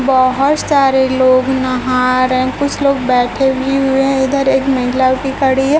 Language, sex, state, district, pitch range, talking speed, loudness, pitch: Hindi, female, Chhattisgarh, Raipur, 255-275 Hz, 175 wpm, -13 LUFS, 265 Hz